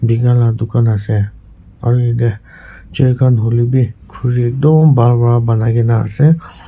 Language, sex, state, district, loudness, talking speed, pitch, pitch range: Nagamese, male, Nagaland, Kohima, -13 LUFS, 155 wpm, 115 Hz, 110-125 Hz